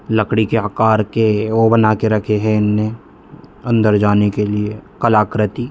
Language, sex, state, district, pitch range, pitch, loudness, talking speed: Hindi, male, Bihar, Muzaffarpur, 105-110 Hz, 110 Hz, -15 LUFS, 155 wpm